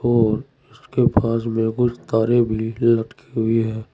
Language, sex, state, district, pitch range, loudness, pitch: Hindi, male, Uttar Pradesh, Saharanpur, 110-115 Hz, -20 LUFS, 115 Hz